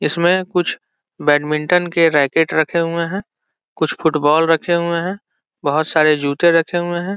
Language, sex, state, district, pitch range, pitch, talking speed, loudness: Hindi, male, Bihar, Saran, 155-175 Hz, 170 Hz, 160 wpm, -17 LUFS